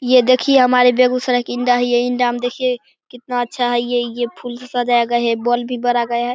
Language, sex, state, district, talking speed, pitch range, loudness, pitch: Hindi, male, Bihar, Begusarai, 255 wpm, 240-250 Hz, -17 LUFS, 245 Hz